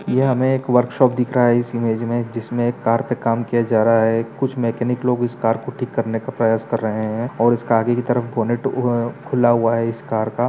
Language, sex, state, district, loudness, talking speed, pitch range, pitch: Hindi, male, Bihar, Begusarai, -19 LUFS, 265 wpm, 115-125 Hz, 120 Hz